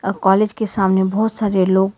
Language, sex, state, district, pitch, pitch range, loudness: Hindi, female, Karnataka, Bangalore, 195 Hz, 190-210 Hz, -17 LUFS